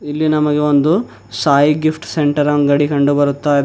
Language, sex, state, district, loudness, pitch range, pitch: Kannada, male, Karnataka, Bidar, -14 LUFS, 145-150 Hz, 145 Hz